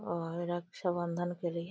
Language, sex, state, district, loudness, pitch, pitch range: Hindi, female, Uttar Pradesh, Deoria, -36 LUFS, 175 Hz, 170-175 Hz